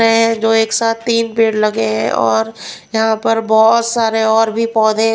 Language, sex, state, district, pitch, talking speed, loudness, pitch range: Hindi, female, Punjab, Pathankot, 225 Hz, 185 wpm, -14 LUFS, 220-225 Hz